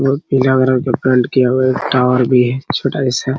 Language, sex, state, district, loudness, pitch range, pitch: Hindi, male, Bihar, Araria, -14 LUFS, 125-135 Hz, 130 Hz